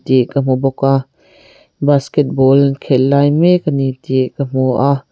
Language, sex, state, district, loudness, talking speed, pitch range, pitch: Mizo, female, Mizoram, Aizawl, -14 LUFS, 190 wpm, 130-140 Hz, 135 Hz